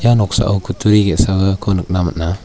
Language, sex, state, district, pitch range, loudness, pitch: Garo, male, Meghalaya, West Garo Hills, 90-105 Hz, -15 LUFS, 100 Hz